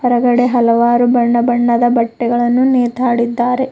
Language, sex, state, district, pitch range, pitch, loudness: Kannada, female, Karnataka, Bidar, 235-245 Hz, 240 Hz, -13 LUFS